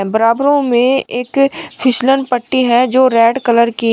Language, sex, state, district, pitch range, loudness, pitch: Hindi, male, Uttar Pradesh, Shamli, 235-270 Hz, -13 LUFS, 250 Hz